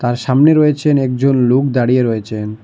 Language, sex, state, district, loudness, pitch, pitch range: Bengali, male, Assam, Hailakandi, -13 LUFS, 130 Hz, 120-140 Hz